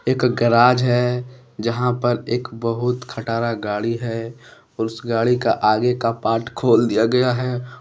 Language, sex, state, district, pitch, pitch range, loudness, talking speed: Hindi, male, Jharkhand, Deoghar, 120 Hz, 115-125 Hz, -20 LUFS, 160 wpm